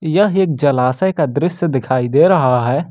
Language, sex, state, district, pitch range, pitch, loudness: Hindi, male, Jharkhand, Ranchi, 130-175 Hz, 150 Hz, -15 LUFS